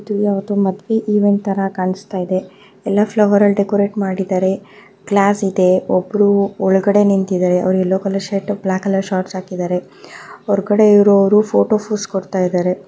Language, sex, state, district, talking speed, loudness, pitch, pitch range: Kannada, female, Karnataka, Mysore, 140 wpm, -16 LUFS, 195 Hz, 185-205 Hz